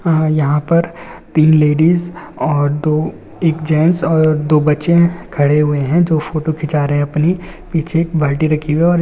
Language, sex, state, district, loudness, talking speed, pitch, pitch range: Hindi, male, Andhra Pradesh, Visakhapatnam, -15 LUFS, 180 wpm, 155 Hz, 150-170 Hz